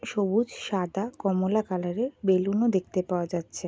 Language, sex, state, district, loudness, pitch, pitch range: Bengali, female, West Bengal, Kolkata, -27 LUFS, 195 Hz, 185-215 Hz